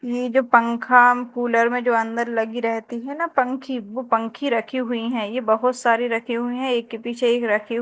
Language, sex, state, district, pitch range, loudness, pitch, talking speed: Hindi, female, Madhya Pradesh, Dhar, 230-250 Hz, -21 LUFS, 240 Hz, 215 wpm